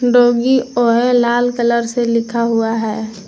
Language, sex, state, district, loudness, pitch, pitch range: Hindi, female, Jharkhand, Garhwa, -15 LUFS, 235 Hz, 230-245 Hz